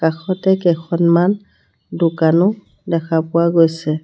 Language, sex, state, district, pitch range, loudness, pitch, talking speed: Assamese, female, Assam, Sonitpur, 165-180 Hz, -16 LUFS, 170 Hz, 90 wpm